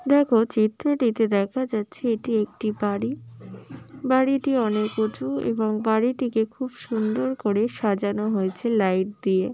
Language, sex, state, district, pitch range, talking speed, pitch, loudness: Bengali, female, West Bengal, Malda, 205-250 Hz, 120 wpm, 220 Hz, -24 LUFS